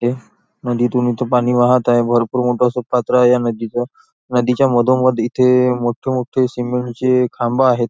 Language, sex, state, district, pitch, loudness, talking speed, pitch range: Marathi, male, Maharashtra, Nagpur, 125 Hz, -16 LUFS, 165 wpm, 120-125 Hz